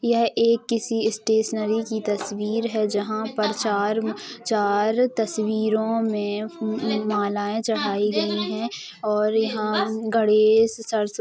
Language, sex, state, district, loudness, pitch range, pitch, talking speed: Hindi, female, Chhattisgarh, Rajnandgaon, -23 LUFS, 210-225 Hz, 220 Hz, 110 wpm